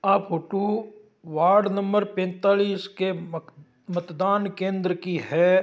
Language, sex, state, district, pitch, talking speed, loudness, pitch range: Marwari, male, Rajasthan, Nagaur, 190 Hz, 105 wpm, -24 LUFS, 175-200 Hz